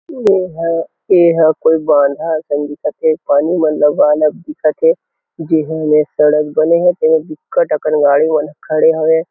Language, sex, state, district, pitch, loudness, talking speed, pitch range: Chhattisgarhi, male, Chhattisgarh, Kabirdham, 160 Hz, -13 LUFS, 155 wpm, 150-165 Hz